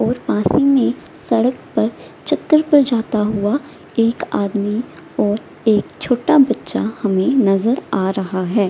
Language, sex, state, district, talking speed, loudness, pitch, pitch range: Hindi, female, Bihar, Samastipur, 145 wpm, -17 LUFS, 230 Hz, 205-275 Hz